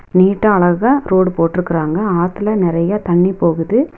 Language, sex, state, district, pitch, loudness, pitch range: Tamil, female, Tamil Nadu, Nilgiris, 185 Hz, -14 LUFS, 170-205 Hz